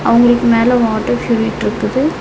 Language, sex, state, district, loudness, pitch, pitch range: Tamil, female, Tamil Nadu, Nilgiris, -13 LUFS, 235 Hz, 230-245 Hz